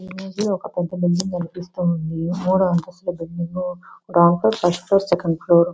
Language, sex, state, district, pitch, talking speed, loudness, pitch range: Telugu, female, Andhra Pradesh, Visakhapatnam, 175 Hz, 190 wpm, -21 LUFS, 170-185 Hz